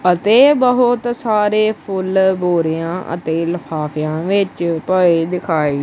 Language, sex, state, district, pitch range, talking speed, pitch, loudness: Punjabi, male, Punjab, Kapurthala, 165-210 Hz, 105 wpm, 180 Hz, -16 LUFS